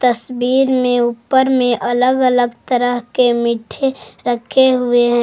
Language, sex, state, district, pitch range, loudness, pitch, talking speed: Hindi, female, Jharkhand, Garhwa, 240-255 Hz, -15 LUFS, 245 Hz, 140 wpm